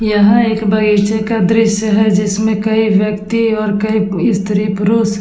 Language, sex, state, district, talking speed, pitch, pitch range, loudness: Hindi, female, Bihar, Vaishali, 140 wpm, 215 Hz, 205-220 Hz, -13 LUFS